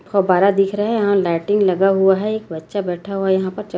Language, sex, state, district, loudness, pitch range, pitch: Hindi, female, Chhattisgarh, Raipur, -17 LUFS, 185-205 Hz, 195 Hz